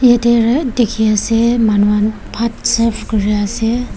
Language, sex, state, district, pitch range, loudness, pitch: Nagamese, female, Nagaland, Kohima, 215-235 Hz, -14 LUFS, 230 Hz